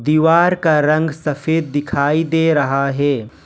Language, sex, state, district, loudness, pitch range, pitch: Hindi, male, Jharkhand, Ranchi, -16 LUFS, 145-160 Hz, 155 Hz